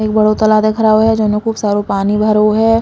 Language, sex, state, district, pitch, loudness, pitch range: Bundeli, female, Uttar Pradesh, Hamirpur, 215 Hz, -12 LUFS, 210-220 Hz